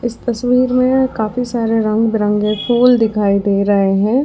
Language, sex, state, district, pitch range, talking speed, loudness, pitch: Hindi, female, Karnataka, Bangalore, 210-245 Hz, 170 wpm, -15 LUFS, 225 Hz